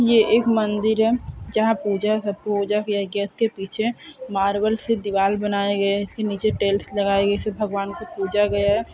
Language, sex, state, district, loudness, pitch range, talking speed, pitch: Hindi, female, Andhra Pradesh, Guntur, -22 LUFS, 200-220 Hz, 180 wpm, 205 Hz